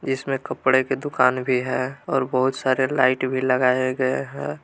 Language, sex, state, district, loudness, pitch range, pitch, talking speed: Hindi, male, Jharkhand, Palamu, -22 LUFS, 130-135 Hz, 130 Hz, 180 wpm